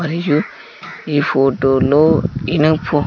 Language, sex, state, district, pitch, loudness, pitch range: Telugu, male, Andhra Pradesh, Sri Satya Sai, 150 Hz, -15 LUFS, 140-160 Hz